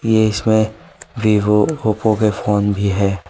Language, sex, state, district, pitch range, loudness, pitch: Hindi, male, Himachal Pradesh, Shimla, 100-110 Hz, -16 LUFS, 105 Hz